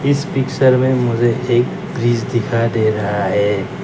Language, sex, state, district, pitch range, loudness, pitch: Hindi, male, Arunachal Pradesh, Lower Dibang Valley, 115-130 Hz, -16 LUFS, 120 Hz